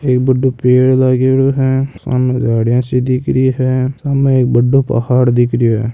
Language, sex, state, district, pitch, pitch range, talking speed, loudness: Marwari, male, Rajasthan, Nagaur, 130 Hz, 125-130 Hz, 180 wpm, -13 LUFS